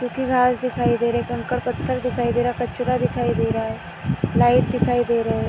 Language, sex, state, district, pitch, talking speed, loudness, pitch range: Hindi, female, Jharkhand, Sahebganj, 245 Hz, 250 wpm, -21 LUFS, 235-250 Hz